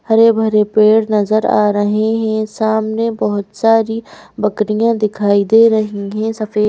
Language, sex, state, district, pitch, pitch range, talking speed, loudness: Hindi, female, Madhya Pradesh, Bhopal, 215 Hz, 210-225 Hz, 145 wpm, -14 LUFS